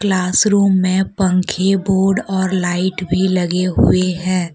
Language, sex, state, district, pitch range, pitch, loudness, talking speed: Hindi, female, Jharkhand, Deoghar, 185-195 Hz, 185 Hz, -16 LUFS, 130 wpm